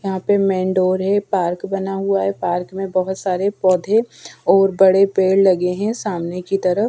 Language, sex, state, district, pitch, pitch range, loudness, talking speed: Hindi, female, Bihar, Patna, 190 Hz, 185-195 Hz, -18 LUFS, 190 wpm